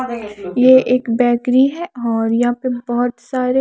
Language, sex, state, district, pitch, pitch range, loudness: Hindi, female, Chandigarh, Chandigarh, 245 Hz, 240-255 Hz, -16 LUFS